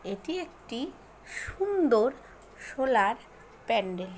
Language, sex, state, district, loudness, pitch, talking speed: Bengali, female, West Bengal, Jhargram, -29 LUFS, 265 Hz, 85 wpm